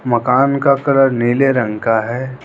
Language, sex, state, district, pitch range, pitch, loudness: Hindi, male, Arunachal Pradesh, Lower Dibang Valley, 120-135 Hz, 130 Hz, -14 LUFS